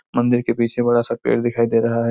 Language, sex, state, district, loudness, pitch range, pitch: Hindi, male, Chhattisgarh, Raigarh, -19 LUFS, 115-120 Hz, 120 Hz